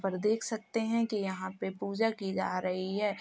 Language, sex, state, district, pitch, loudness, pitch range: Hindi, male, Uttar Pradesh, Jalaun, 200 Hz, -33 LUFS, 190-225 Hz